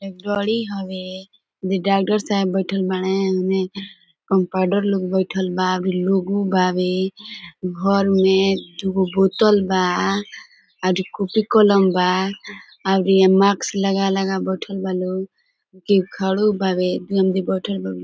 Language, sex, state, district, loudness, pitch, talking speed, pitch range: Bhojpuri, female, Bihar, Gopalganj, -19 LUFS, 190 Hz, 125 wpm, 185-195 Hz